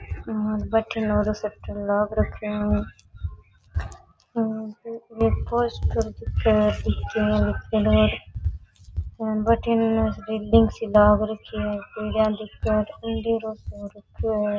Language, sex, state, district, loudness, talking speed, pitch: Rajasthani, female, Rajasthan, Nagaur, -24 LUFS, 80 wpm, 210 Hz